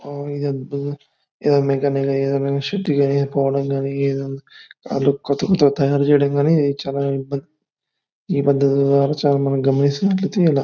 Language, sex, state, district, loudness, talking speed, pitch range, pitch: Telugu, male, Andhra Pradesh, Anantapur, -19 LUFS, 125 wpm, 140-145 Hz, 140 Hz